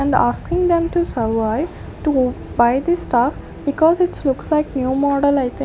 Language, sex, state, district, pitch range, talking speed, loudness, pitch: English, female, Chandigarh, Chandigarh, 260-330 Hz, 190 wpm, -18 LUFS, 285 Hz